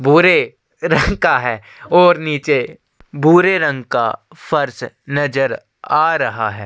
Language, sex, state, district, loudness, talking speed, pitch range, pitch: Hindi, male, Chhattisgarh, Sukma, -15 LUFS, 110 wpm, 135-170 Hz, 145 Hz